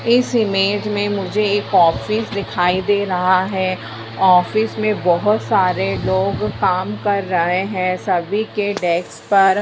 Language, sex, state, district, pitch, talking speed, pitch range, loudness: Hindi, female, Bihar, Bhagalpur, 195 Hz, 150 wpm, 180-205 Hz, -17 LUFS